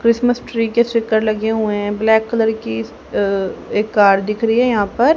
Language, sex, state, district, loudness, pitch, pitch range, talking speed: Hindi, female, Haryana, Rohtak, -17 LUFS, 220 Hz, 205-230 Hz, 210 wpm